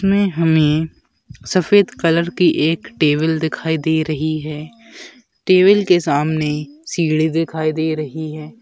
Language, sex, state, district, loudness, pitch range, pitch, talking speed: Hindi, male, Bihar, Jamui, -17 LUFS, 155-180 Hz, 160 Hz, 130 wpm